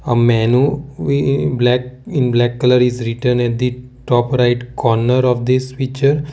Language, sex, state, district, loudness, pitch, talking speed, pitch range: English, male, Gujarat, Valsad, -16 LUFS, 125 Hz, 150 wpm, 120-130 Hz